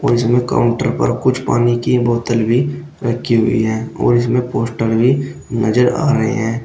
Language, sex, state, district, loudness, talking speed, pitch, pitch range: Hindi, male, Uttar Pradesh, Shamli, -16 LUFS, 170 wpm, 120 Hz, 115-125 Hz